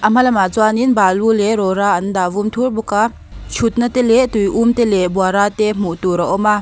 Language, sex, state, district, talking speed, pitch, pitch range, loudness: Mizo, female, Mizoram, Aizawl, 255 wpm, 210 Hz, 195-230 Hz, -15 LUFS